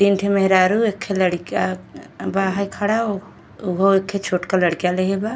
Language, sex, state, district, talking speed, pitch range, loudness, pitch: Bhojpuri, female, Uttar Pradesh, Ghazipur, 190 wpm, 185-200 Hz, -20 LUFS, 195 Hz